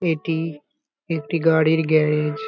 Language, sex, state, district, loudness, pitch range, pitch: Bengali, male, West Bengal, Kolkata, -20 LUFS, 155-165 Hz, 160 Hz